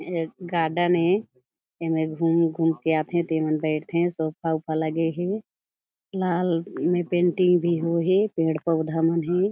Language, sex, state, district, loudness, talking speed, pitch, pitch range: Chhattisgarhi, female, Chhattisgarh, Jashpur, -24 LUFS, 150 wpm, 165 Hz, 160-175 Hz